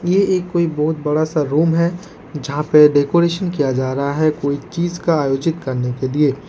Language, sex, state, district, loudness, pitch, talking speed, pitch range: Hindi, male, Jharkhand, Ranchi, -17 LUFS, 150 Hz, 205 wpm, 140-170 Hz